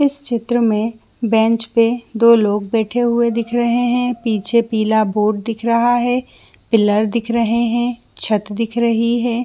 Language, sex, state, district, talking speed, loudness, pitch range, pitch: Hindi, female, Jharkhand, Jamtara, 165 wpm, -17 LUFS, 220-240 Hz, 230 Hz